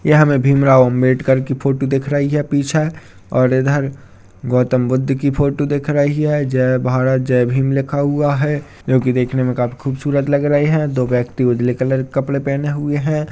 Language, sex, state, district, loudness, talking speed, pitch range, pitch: Hindi, male, Uttarakhand, Uttarkashi, -16 LUFS, 205 wpm, 130-145 Hz, 135 Hz